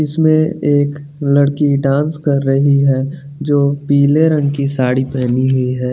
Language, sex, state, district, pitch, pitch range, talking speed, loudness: Hindi, male, Bihar, West Champaran, 140 Hz, 135-145 Hz, 150 wpm, -14 LUFS